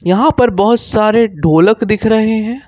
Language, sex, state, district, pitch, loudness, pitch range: Hindi, male, Jharkhand, Ranchi, 220 Hz, -12 LUFS, 210-230 Hz